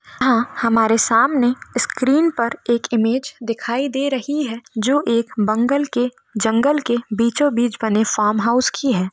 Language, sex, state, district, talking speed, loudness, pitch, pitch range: Hindi, female, Goa, North and South Goa, 150 wpm, -18 LUFS, 240 Hz, 225-265 Hz